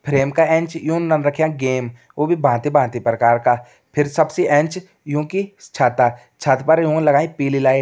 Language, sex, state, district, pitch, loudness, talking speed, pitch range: Kumaoni, male, Uttarakhand, Tehri Garhwal, 145 Hz, -18 LUFS, 185 wpm, 130-160 Hz